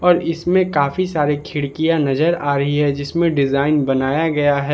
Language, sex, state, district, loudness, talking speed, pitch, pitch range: Hindi, male, Jharkhand, Palamu, -18 LUFS, 175 wpm, 150 Hz, 140-165 Hz